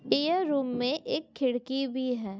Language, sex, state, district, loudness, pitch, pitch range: Hindi, female, Maharashtra, Pune, -29 LUFS, 260 Hz, 245-285 Hz